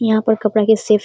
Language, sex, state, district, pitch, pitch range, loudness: Hindi, female, Bihar, Darbhanga, 220 Hz, 215-220 Hz, -16 LUFS